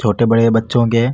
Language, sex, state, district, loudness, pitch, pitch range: Marwari, male, Rajasthan, Nagaur, -14 LUFS, 115 Hz, 115-120 Hz